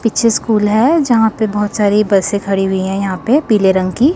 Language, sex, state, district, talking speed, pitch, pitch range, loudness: Hindi, female, Chandigarh, Chandigarh, 230 wpm, 210 Hz, 195-230 Hz, -13 LUFS